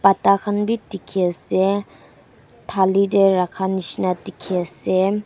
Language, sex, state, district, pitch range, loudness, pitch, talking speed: Nagamese, female, Nagaland, Kohima, 185-200 Hz, -20 LUFS, 195 Hz, 115 wpm